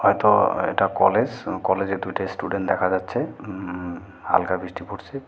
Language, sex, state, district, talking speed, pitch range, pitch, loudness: Bengali, male, West Bengal, Cooch Behar, 135 wpm, 90-100 Hz, 95 Hz, -23 LUFS